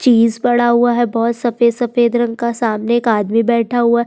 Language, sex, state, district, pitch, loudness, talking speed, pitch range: Hindi, female, Uttar Pradesh, Budaun, 235 Hz, -15 LUFS, 205 wpm, 230-240 Hz